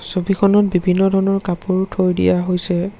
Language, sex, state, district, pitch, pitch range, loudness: Assamese, male, Assam, Sonitpur, 185 Hz, 180-195 Hz, -17 LUFS